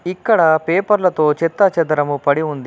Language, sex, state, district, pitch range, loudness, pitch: Telugu, male, Telangana, Adilabad, 150-185 Hz, -15 LUFS, 165 Hz